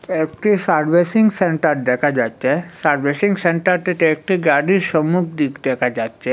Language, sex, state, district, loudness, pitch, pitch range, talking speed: Bengali, male, Assam, Hailakandi, -17 LUFS, 160 Hz, 145-180 Hz, 125 wpm